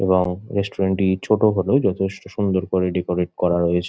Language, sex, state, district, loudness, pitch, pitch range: Bengali, male, West Bengal, Jhargram, -21 LUFS, 95 Hz, 90-100 Hz